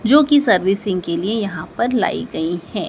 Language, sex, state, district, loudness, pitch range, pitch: Hindi, male, Madhya Pradesh, Dhar, -18 LUFS, 180-235 Hz, 195 Hz